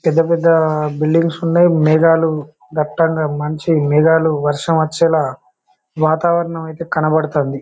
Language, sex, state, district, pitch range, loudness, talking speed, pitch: Telugu, male, Telangana, Karimnagar, 150-165 Hz, -15 LUFS, 100 wpm, 155 Hz